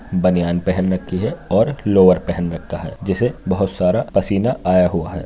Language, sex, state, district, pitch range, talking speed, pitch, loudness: Hindi, male, Uttar Pradesh, Jyotiba Phule Nagar, 90-95 Hz, 180 wpm, 90 Hz, -18 LUFS